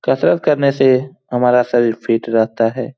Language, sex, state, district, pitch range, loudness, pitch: Hindi, male, Bihar, Saran, 115-135 Hz, -15 LUFS, 125 Hz